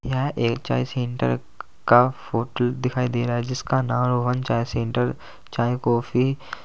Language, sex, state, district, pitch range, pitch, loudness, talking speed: Hindi, male, Uttar Pradesh, Saharanpur, 120-125 Hz, 120 Hz, -23 LUFS, 155 wpm